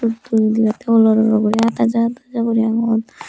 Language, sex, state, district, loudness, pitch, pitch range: Chakma, female, Tripura, Dhalai, -16 LUFS, 230 Hz, 220-230 Hz